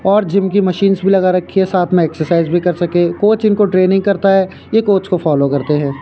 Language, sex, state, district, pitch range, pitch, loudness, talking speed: Hindi, male, Rajasthan, Jaipur, 175-195 Hz, 185 Hz, -14 LUFS, 250 wpm